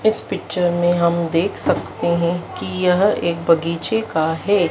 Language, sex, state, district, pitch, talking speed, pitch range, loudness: Hindi, female, Madhya Pradesh, Dhar, 170 Hz, 165 wpm, 170-185 Hz, -19 LUFS